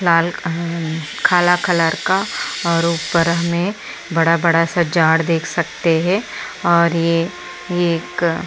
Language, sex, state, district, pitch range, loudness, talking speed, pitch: Hindi, male, Maharashtra, Aurangabad, 165-175 Hz, -17 LUFS, 140 wpm, 170 Hz